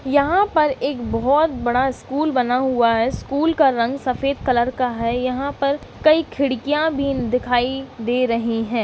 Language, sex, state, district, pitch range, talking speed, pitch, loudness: Hindi, female, Uttar Pradesh, Varanasi, 245-280 Hz, 170 wpm, 260 Hz, -20 LUFS